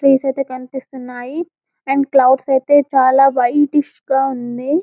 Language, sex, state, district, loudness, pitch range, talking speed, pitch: Telugu, female, Telangana, Karimnagar, -15 LUFS, 260-280 Hz, 125 wpm, 270 Hz